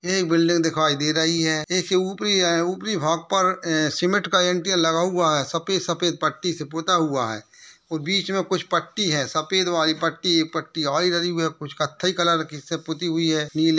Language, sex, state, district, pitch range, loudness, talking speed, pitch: Hindi, male, Uttar Pradesh, Etah, 155-180 Hz, -22 LUFS, 215 wpm, 165 Hz